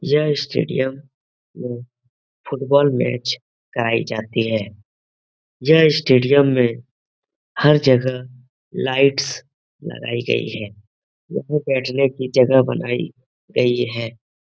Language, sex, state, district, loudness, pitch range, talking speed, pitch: Hindi, male, Uttar Pradesh, Etah, -19 LUFS, 120-140 Hz, 100 wpm, 130 Hz